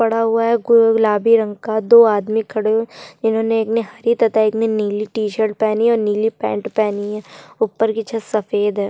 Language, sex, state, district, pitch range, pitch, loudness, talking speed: Hindi, female, Chhattisgarh, Sukma, 215-225 Hz, 220 Hz, -17 LUFS, 245 wpm